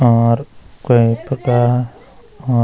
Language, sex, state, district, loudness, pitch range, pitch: Garhwali, male, Uttarakhand, Uttarkashi, -15 LUFS, 115-125 Hz, 120 Hz